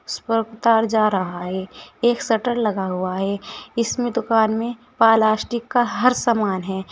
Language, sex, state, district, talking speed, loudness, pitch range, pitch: Hindi, female, Uttar Pradesh, Saharanpur, 165 wpm, -20 LUFS, 195-235 Hz, 225 Hz